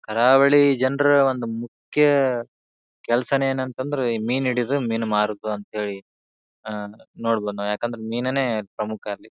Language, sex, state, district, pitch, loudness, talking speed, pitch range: Kannada, male, Karnataka, Bijapur, 115 Hz, -22 LUFS, 115 wpm, 105-130 Hz